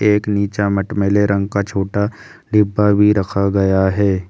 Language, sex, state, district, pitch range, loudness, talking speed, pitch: Hindi, male, Delhi, New Delhi, 100-105 Hz, -16 LUFS, 155 wpm, 100 Hz